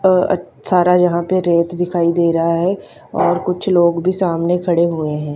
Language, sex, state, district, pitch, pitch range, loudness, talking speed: Hindi, female, Haryana, Charkhi Dadri, 175 Hz, 170-180 Hz, -16 LUFS, 200 wpm